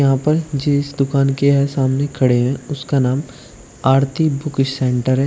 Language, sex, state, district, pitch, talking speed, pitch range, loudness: Hindi, male, Uttar Pradesh, Shamli, 135 Hz, 170 wpm, 130-140 Hz, -17 LUFS